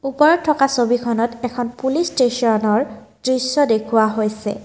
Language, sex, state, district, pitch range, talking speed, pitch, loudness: Assamese, female, Assam, Kamrup Metropolitan, 225-270 Hz, 115 wpm, 245 Hz, -18 LUFS